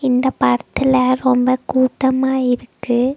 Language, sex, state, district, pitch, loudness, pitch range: Tamil, female, Tamil Nadu, Nilgiris, 255 Hz, -17 LUFS, 250-260 Hz